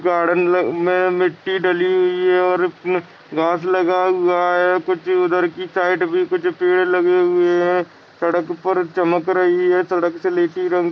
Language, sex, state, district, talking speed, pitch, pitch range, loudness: Hindi, male, Chhattisgarh, Bastar, 185 wpm, 180 Hz, 175-185 Hz, -18 LUFS